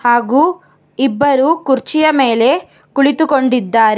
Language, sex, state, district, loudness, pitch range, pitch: Kannada, female, Karnataka, Bangalore, -13 LUFS, 245-310 Hz, 270 Hz